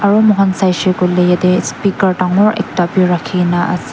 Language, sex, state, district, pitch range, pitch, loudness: Nagamese, female, Nagaland, Dimapur, 180-195 Hz, 185 Hz, -13 LUFS